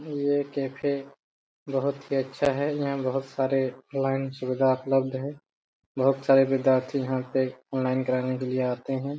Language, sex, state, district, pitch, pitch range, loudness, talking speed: Hindi, male, Jharkhand, Jamtara, 135 Hz, 130-140 Hz, -27 LUFS, 165 wpm